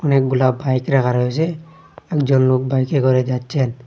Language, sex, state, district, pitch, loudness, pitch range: Bengali, male, Assam, Hailakandi, 130 Hz, -18 LUFS, 130-145 Hz